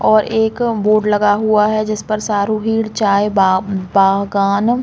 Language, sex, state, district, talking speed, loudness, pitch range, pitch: Hindi, female, Chhattisgarh, Balrampur, 150 wpm, -15 LUFS, 200-215 Hz, 210 Hz